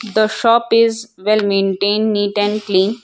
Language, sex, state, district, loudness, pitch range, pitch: English, female, Gujarat, Valsad, -16 LUFS, 205-225 Hz, 215 Hz